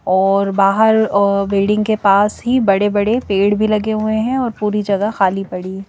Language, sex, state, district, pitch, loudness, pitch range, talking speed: Hindi, female, Madhya Pradesh, Bhopal, 205 Hz, -15 LUFS, 195-215 Hz, 195 wpm